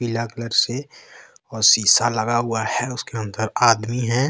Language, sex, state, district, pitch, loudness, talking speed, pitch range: Hindi, male, Jharkhand, Deoghar, 115 Hz, -19 LUFS, 165 wpm, 110-120 Hz